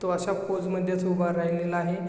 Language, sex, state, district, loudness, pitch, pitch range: Marathi, male, Maharashtra, Chandrapur, -27 LUFS, 180 Hz, 175-185 Hz